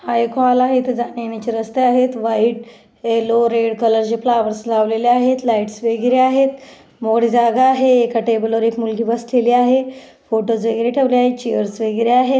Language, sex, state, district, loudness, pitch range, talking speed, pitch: Marathi, female, Maharashtra, Dhule, -16 LUFS, 225-250 Hz, 170 wpm, 235 Hz